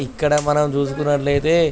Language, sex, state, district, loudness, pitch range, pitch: Telugu, male, Andhra Pradesh, Krishna, -18 LUFS, 140-150 Hz, 150 Hz